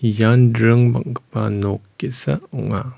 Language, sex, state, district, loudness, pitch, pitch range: Garo, male, Meghalaya, West Garo Hills, -18 LUFS, 115 Hz, 105-120 Hz